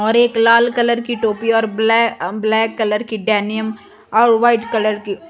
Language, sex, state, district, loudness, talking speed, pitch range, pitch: Hindi, female, Himachal Pradesh, Shimla, -16 LUFS, 190 wpm, 215-230 Hz, 225 Hz